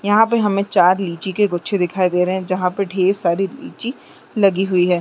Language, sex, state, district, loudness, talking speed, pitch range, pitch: Chhattisgarhi, female, Chhattisgarh, Jashpur, -18 LUFS, 225 wpm, 180-200 Hz, 190 Hz